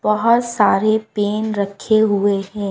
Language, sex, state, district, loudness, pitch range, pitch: Hindi, female, Bihar, West Champaran, -17 LUFS, 200-220 Hz, 210 Hz